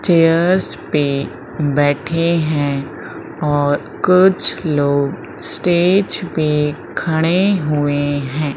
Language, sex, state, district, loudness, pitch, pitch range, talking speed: Hindi, female, Madhya Pradesh, Umaria, -16 LUFS, 150 Hz, 145-170 Hz, 85 wpm